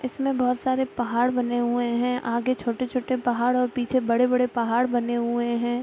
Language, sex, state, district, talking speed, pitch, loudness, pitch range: Hindi, female, Bihar, Araria, 195 wpm, 245 Hz, -24 LUFS, 240-250 Hz